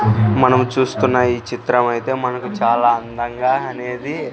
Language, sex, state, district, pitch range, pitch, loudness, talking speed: Telugu, male, Andhra Pradesh, Sri Satya Sai, 120-130 Hz, 125 Hz, -18 LUFS, 110 wpm